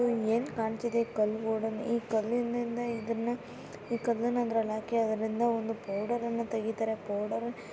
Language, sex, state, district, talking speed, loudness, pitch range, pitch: Kannada, female, Karnataka, Bellary, 125 wpm, -32 LUFS, 220-235 Hz, 230 Hz